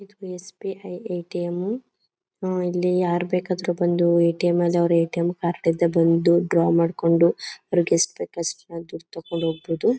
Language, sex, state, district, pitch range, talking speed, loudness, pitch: Kannada, female, Karnataka, Mysore, 170-180 Hz, 145 wpm, -22 LUFS, 175 Hz